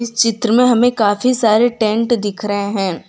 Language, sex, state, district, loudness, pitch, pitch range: Hindi, female, Gujarat, Valsad, -15 LUFS, 225 Hz, 205-240 Hz